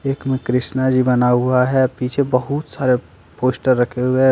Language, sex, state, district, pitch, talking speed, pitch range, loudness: Hindi, male, Jharkhand, Deoghar, 130 Hz, 195 wpm, 125-130 Hz, -18 LUFS